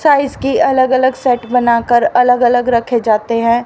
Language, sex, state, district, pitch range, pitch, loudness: Hindi, female, Haryana, Rohtak, 235-260 Hz, 245 Hz, -13 LUFS